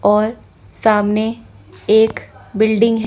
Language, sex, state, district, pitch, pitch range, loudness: Hindi, female, Chandigarh, Chandigarh, 220 Hz, 205-225 Hz, -16 LUFS